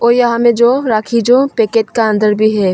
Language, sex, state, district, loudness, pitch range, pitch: Hindi, female, Arunachal Pradesh, Longding, -12 LUFS, 215-240 Hz, 230 Hz